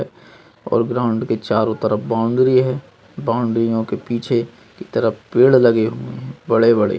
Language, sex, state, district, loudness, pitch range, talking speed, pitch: Hindi, male, Maharashtra, Nagpur, -18 LUFS, 115-120 Hz, 165 wpm, 115 Hz